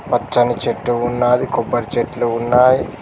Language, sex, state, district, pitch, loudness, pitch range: Telugu, male, Telangana, Mahabubabad, 120 Hz, -17 LUFS, 120-125 Hz